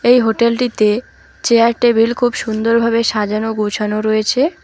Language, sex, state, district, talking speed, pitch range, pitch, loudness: Bengali, female, West Bengal, Alipurduar, 130 wpm, 215-240 Hz, 230 Hz, -15 LUFS